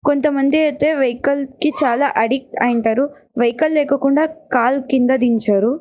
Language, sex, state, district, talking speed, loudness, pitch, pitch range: Telugu, female, Karnataka, Bellary, 125 wpm, -17 LUFS, 275 Hz, 245-295 Hz